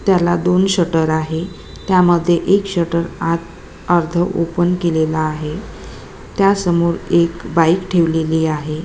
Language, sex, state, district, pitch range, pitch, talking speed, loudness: Marathi, female, Maharashtra, Chandrapur, 160-180 Hz, 170 Hz, 130 wpm, -16 LUFS